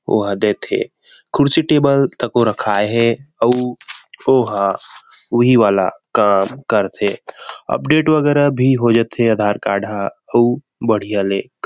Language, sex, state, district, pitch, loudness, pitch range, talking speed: Chhattisgarhi, male, Chhattisgarh, Rajnandgaon, 120 Hz, -16 LUFS, 105-135 Hz, 135 wpm